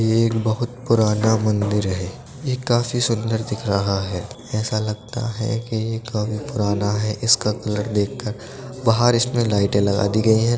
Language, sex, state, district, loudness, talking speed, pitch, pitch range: Hindi, male, Uttar Pradesh, Budaun, -21 LUFS, 175 wpm, 110 Hz, 105-115 Hz